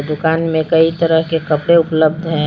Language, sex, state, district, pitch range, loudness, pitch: Hindi, female, Jharkhand, Palamu, 155-165 Hz, -14 LUFS, 160 Hz